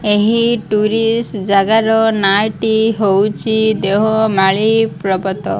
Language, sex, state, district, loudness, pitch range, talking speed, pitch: Odia, female, Odisha, Malkangiri, -14 LUFS, 200-220 Hz, 85 wpm, 215 Hz